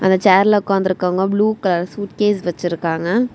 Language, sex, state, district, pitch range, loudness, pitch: Tamil, female, Tamil Nadu, Kanyakumari, 180-205 Hz, -17 LUFS, 190 Hz